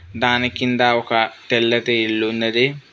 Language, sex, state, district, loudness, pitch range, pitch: Telugu, male, Telangana, Mahabubabad, -18 LUFS, 115-125 Hz, 120 Hz